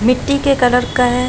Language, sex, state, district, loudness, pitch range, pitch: Hindi, female, Uttar Pradesh, Jalaun, -14 LUFS, 245-270 Hz, 250 Hz